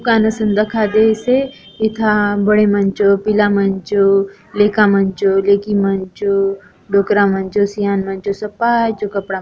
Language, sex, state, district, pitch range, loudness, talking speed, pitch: Halbi, female, Chhattisgarh, Bastar, 195-210 Hz, -15 LUFS, 170 wpm, 205 Hz